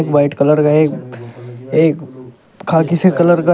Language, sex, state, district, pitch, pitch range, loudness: Hindi, male, Uttar Pradesh, Shamli, 150 Hz, 130-170 Hz, -13 LUFS